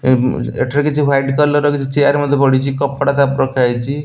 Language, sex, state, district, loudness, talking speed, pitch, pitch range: Odia, male, Odisha, Nuapada, -15 LUFS, 205 wpm, 140 Hz, 135-145 Hz